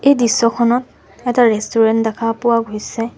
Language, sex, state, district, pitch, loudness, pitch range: Assamese, female, Assam, Sonitpur, 230 Hz, -16 LUFS, 225-240 Hz